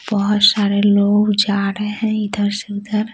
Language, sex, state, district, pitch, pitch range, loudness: Hindi, female, Bihar, Patna, 205 Hz, 205-210 Hz, -16 LUFS